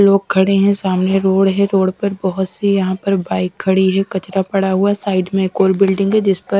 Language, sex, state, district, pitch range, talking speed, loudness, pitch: Hindi, female, Bihar, West Champaran, 190-195 Hz, 255 wpm, -15 LUFS, 195 Hz